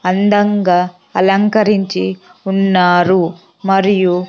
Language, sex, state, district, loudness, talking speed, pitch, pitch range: Telugu, female, Andhra Pradesh, Sri Satya Sai, -13 LUFS, 55 wpm, 185 Hz, 180-200 Hz